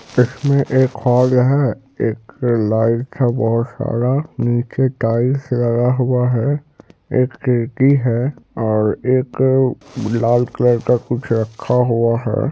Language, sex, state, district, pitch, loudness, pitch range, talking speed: Hindi, male, Bihar, Supaul, 125 Hz, -17 LUFS, 115-130 Hz, 125 wpm